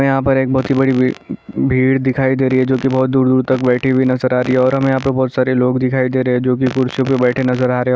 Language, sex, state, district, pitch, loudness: Hindi, male, Chhattisgarh, Sarguja, 130 Hz, -15 LUFS